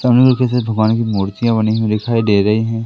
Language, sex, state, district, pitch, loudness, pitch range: Hindi, male, Madhya Pradesh, Katni, 110 Hz, -15 LUFS, 110-120 Hz